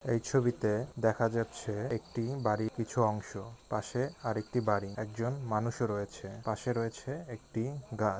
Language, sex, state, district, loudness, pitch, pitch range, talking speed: Bengali, male, West Bengal, Jhargram, -34 LUFS, 115 Hz, 105-120 Hz, 140 wpm